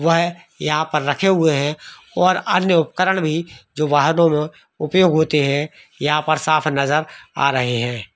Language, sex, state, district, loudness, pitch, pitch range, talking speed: Hindi, male, Jharkhand, Sahebganj, -18 LUFS, 155 Hz, 145-170 Hz, 155 wpm